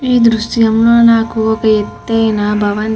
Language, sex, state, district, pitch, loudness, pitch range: Telugu, female, Andhra Pradesh, Krishna, 225 Hz, -12 LUFS, 215-230 Hz